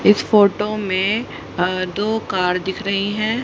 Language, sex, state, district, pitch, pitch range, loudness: Hindi, female, Haryana, Rohtak, 200 Hz, 185-215 Hz, -19 LUFS